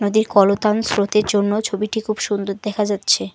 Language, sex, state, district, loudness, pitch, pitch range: Bengali, female, West Bengal, Alipurduar, -19 LUFS, 210 Hz, 200-215 Hz